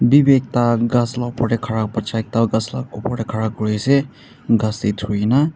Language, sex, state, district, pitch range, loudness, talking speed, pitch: Nagamese, male, Nagaland, Dimapur, 110-125 Hz, -19 LUFS, 215 wpm, 115 Hz